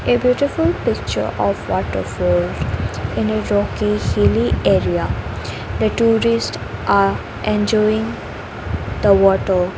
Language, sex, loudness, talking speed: English, female, -18 LUFS, 110 wpm